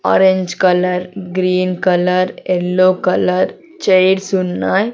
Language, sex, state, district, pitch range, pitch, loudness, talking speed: Telugu, female, Andhra Pradesh, Sri Satya Sai, 180-190 Hz, 185 Hz, -15 LUFS, 95 wpm